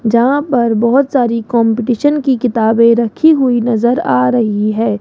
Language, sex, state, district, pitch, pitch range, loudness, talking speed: Hindi, female, Rajasthan, Jaipur, 235 Hz, 225-255 Hz, -12 LUFS, 155 wpm